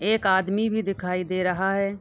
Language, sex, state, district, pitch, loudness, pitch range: Hindi, female, Uttar Pradesh, Deoria, 195 Hz, -24 LUFS, 185-200 Hz